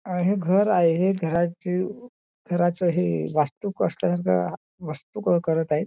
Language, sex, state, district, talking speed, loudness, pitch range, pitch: Marathi, male, Maharashtra, Nagpur, 145 wpm, -24 LUFS, 155-185 Hz, 175 Hz